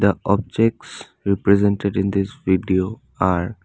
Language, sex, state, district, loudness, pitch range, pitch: English, male, Assam, Sonitpur, -20 LUFS, 95-100 Hz, 100 Hz